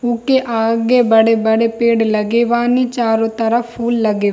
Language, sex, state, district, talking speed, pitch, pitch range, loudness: Hindi, female, Bihar, Darbhanga, 150 wpm, 230 Hz, 225-240 Hz, -15 LUFS